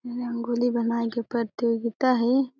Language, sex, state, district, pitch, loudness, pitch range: Chhattisgarhi, female, Chhattisgarh, Jashpur, 235 Hz, -25 LUFS, 235-245 Hz